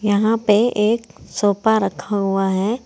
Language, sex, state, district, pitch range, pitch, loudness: Hindi, female, Uttar Pradesh, Saharanpur, 195-225 Hz, 210 Hz, -18 LUFS